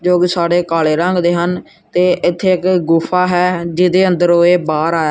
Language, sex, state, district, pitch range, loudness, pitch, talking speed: Punjabi, male, Punjab, Kapurthala, 170-180 Hz, -14 LUFS, 175 Hz, 200 wpm